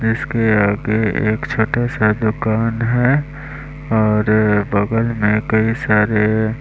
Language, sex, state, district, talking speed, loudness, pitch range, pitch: Hindi, male, Bihar, West Champaran, 120 wpm, -17 LUFS, 105-115 Hz, 110 Hz